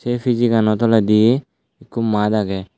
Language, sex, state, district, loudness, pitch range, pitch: Chakma, male, Tripura, Dhalai, -17 LUFS, 105-120 Hz, 110 Hz